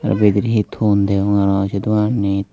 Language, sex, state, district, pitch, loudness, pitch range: Chakma, male, Tripura, Dhalai, 100 Hz, -17 LUFS, 100-105 Hz